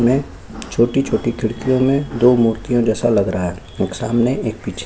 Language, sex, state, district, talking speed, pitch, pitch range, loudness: Hindi, male, Chhattisgarh, Kabirdham, 175 wpm, 120 Hz, 110-130 Hz, -18 LUFS